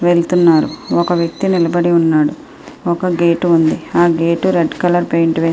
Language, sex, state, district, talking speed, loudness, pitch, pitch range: Telugu, female, Andhra Pradesh, Srikakulam, 140 wpm, -14 LUFS, 170 Hz, 165-175 Hz